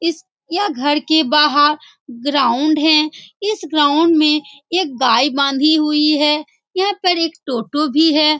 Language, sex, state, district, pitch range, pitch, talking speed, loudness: Hindi, female, Bihar, Saran, 295-330 Hz, 305 Hz, 150 wpm, -15 LUFS